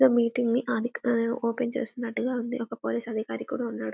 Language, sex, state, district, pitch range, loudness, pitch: Telugu, female, Telangana, Karimnagar, 230-245 Hz, -28 LUFS, 235 Hz